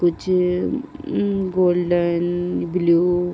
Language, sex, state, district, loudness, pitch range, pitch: Hindi, female, Uttar Pradesh, Ghazipur, -20 LUFS, 175-185 Hz, 180 Hz